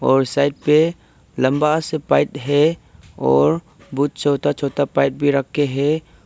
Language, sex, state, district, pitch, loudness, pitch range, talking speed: Hindi, male, Arunachal Pradesh, Papum Pare, 145 Hz, -18 LUFS, 135-150 Hz, 145 wpm